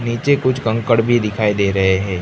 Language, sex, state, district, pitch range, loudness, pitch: Hindi, male, Gujarat, Gandhinagar, 100-120 Hz, -16 LUFS, 115 Hz